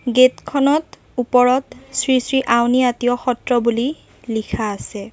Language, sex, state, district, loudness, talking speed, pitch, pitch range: Assamese, female, Assam, Kamrup Metropolitan, -18 LUFS, 130 wpm, 250 Hz, 235-255 Hz